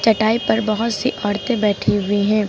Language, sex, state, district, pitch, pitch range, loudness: Hindi, female, Uttar Pradesh, Lucknow, 215 Hz, 205-225 Hz, -19 LUFS